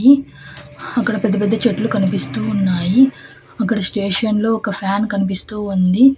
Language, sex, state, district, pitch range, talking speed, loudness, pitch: Telugu, female, Andhra Pradesh, Annamaya, 195-225 Hz, 125 wpm, -17 LUFS, 210 Hz